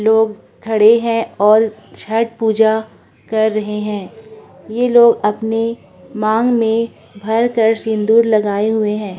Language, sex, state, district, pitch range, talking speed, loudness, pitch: Hindi, female, Uttar Pradesh, Jyotiba Phule Nagar, 215-230 Hz, 130 wpm, -15 LUFS, 220 Hz